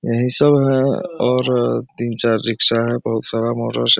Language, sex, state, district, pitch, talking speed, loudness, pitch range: Hindi, male, Bihar, Supaul, 120 Hz, 165 wpm, -17 LUFS, 115-125 Hz